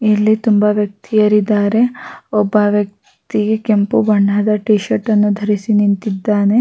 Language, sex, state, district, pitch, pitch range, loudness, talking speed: Kannada, female, Karnataka, Raichur, 210 Hz, 205-215 Hz, -15 LUFS, 110 wpm